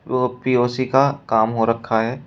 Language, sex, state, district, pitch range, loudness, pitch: Hindi, male, Uttar Pradesh, Shamli, 115-130 Hz, -19 LUFS, 125 Hz